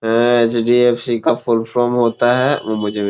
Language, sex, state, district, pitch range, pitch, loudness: Hindi, male, Bihar, Gopalganj, 115-120 Hz, 120 Hz, -16 LUFS